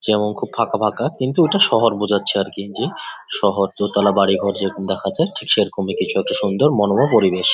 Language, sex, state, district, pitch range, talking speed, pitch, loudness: Bengali, male, West Bengal, Jalpaiguri, 100-115 Hz, 190 wpm, 100 Hz, -18 LUFS